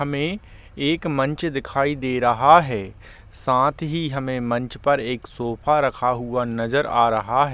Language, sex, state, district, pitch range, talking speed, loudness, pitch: Hindi, male, Jharkhand, Sahebganj, 120-145 Hz, 160 wpm, -21 LUFS, 135 Hz